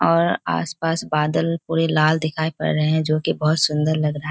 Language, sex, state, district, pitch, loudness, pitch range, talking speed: Hindi, female, Bihar, Kishanganj, 155 Hz, -20 LUFS, 155-165 Hz, 210 wpm